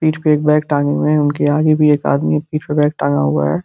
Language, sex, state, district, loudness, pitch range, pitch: Hindi, male, Uttar Pradesh, Gorakhpur, -15 LUFS, 145-150 Hz, 150 Hz